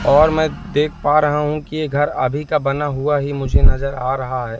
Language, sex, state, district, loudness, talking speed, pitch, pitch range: Hindi, male, Madhya Pradesh, Katni, -18 LUFS, 245 wpm, 145 Hz, 135-150 Hz